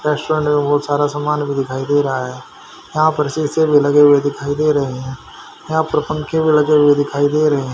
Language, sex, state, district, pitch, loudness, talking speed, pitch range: Hindi, male, Haryana, Rohtak, 145 Hz, -16 LUFS, 235 wpm, 145-150 Hz